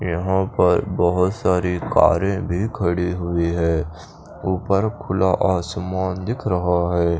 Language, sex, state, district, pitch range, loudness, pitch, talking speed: Hindi, male, Chandigarh, Chandigarh, 85-95 Hz, -20 LUFS, 90 Hz, 125 wpm